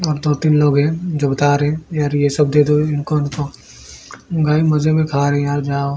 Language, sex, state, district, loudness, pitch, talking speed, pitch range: Hindi, male, Odisha, Malkangiri, -16 LUFS, 150 Hz, 70 wpm, 145-155 Hz